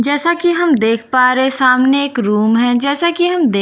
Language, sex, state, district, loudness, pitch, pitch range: Hindi, female, Bihar, Katihar, -13 LUFS, 265 Hz, 245-335 Hz